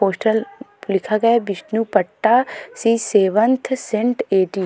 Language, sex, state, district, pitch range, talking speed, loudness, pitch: Hindi, female, Uttarakhand, Tehri Garhwal, 200-235 Hz, 130 wpm, -18 LUFS, 220 Hz